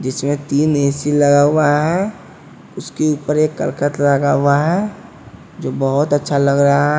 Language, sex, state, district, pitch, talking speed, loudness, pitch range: Hindi, male, Bihar, West Champaran, 145 Hz, 155 wpm, -16 LUFS, 140-150 Hz